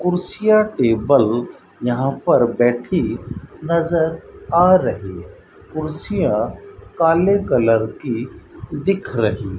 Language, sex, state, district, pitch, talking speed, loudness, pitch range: Hindi, male, Rajasthan, Bikaner, 140 Hz, 95 wpm, -18 LUFS, 115-175 Hz